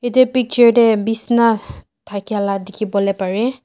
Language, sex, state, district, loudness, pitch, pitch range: Nagamese, female, Nagaland, Dimapur, -16 LUFS, 220 Hz, 200-240 Hz